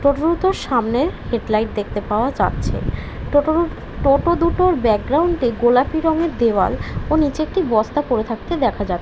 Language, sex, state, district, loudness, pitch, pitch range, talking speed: Bengali, female, West Bengal, Jhargram, -19 LUFS, 250 Hz, 215-315 Hz, 160 wpm